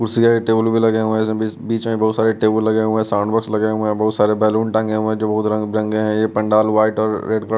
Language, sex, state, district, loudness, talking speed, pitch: Hindi, male, Bihar, West Champaran, -17 LUFS, 295 wpm, 110 Hz